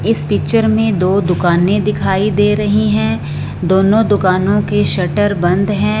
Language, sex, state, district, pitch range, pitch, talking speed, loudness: Hindi, female, Punjab, Fazilka, 125-205 Hz, 185 Hz, 150 wpm, -14 LUFS